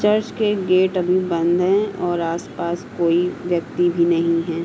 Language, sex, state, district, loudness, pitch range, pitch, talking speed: Hindi, female, Uttar Pradesh, Hamirpur, -20 LUFS, 170-185 Hz, 175 Hz, 170 wpm